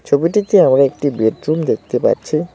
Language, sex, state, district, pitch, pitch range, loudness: Bengali, male, West Bengal, Cooch Behar, 150 Hz, 140-165 Hz, -15 LUFS